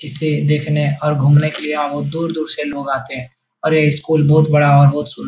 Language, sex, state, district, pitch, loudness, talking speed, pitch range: Hindi, male, Bihar, Jahanabad, 150 Hz, -15 LUFS, 225 wpm, 145-150 Hz